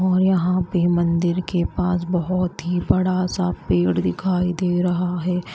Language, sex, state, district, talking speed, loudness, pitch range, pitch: Hindi, female, Himachal Pradesh, Shimla, 160 wpm, -21 LUFS, 175-180 Hz, 180 Hz